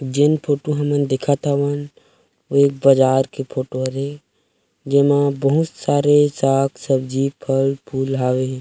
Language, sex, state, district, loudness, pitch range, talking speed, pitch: Chhattisgarhi, male, Chhattisgarh, Rajnandgaon, -18 LUFS, 135-145 Hz, 120 wpm, 140 Hz